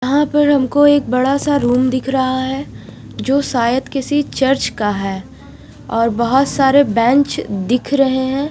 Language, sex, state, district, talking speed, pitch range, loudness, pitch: Hindi, female, Punjab, Fazilka, 160 wpm, 235-280 Hz, -15 LUFS, 260 Hz